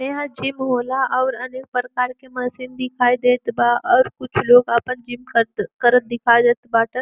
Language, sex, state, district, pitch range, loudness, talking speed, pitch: Bhojpuri, female, Uttar Pradesh, Gorakhpur, 240-255 Hz, -19 LUFS, 190 wpm, 250 Hz